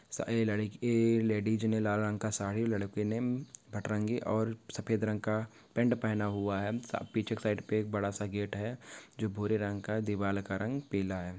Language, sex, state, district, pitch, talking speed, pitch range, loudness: Hindi, male, Maharashtra, Nagpur, 110 Hz, 205 wpm, 105-110 Hz, -34 LUFS